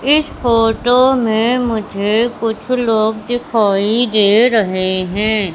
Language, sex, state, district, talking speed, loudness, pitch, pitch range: Hindi, female, Madhya Pradesh, Katni, 110 wpm, -14 LUFS, 225 Hz, 210-245 Hz